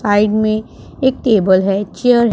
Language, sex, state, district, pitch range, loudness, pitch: Hindi, female, Punjab, Pathankot, 205-240 Hz, -15 LUFS, 215 Hz